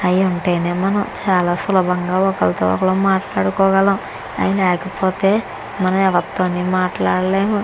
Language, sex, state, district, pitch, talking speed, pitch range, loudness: Telugu, female, Andhra Pradesh, Chittoor, 185 Hz, 120 wpm, 180-195 Hz, -17 LUFS